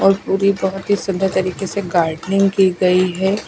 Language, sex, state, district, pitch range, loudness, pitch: Hindi, female, Punjab, Fazilka, 185-195 Hz, -17 LUFS, 190 Hz